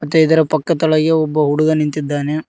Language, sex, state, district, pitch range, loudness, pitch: Kannada, male, Karnataka, Koppal, 150-160 Hz, -15 LUFS, 155 Hz